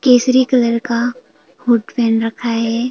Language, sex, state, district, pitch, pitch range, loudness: Hindi, female, Arunachal Pradesh, Papum Pare, 235 Hz, 230-250 Hz, -16 LUFS